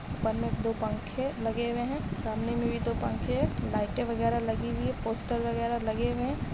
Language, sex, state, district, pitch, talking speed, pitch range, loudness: Hindi, female, Bihar, Darbhanga, 235 Hz, 195 wpm, 225-235 Hz, -31 LUFS